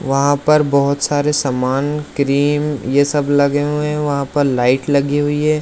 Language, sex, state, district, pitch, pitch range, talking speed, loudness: Hindi, male, Bihar, Lakhisarai, 145 Hz, 140-150 Hz, 180 wpm, -16 LUFS